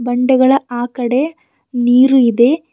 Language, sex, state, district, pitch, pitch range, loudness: Kannada, female, Karnataka, Bidar, 255 Hz, 245-270 Hz, -13 LUFS